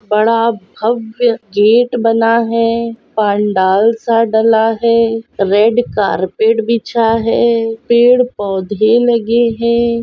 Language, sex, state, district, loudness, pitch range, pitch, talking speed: Hindi, female, Rajasthan, Nagaur, -13 LUFS, 215-235 Hz, 230 Hz, 100 wpm